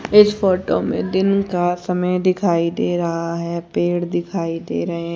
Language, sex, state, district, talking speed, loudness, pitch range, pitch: Hindi, female, Haryana, Charkhi Dadri, 165 wpm, -19 LUFS, 170-190 Hz, 175 Hz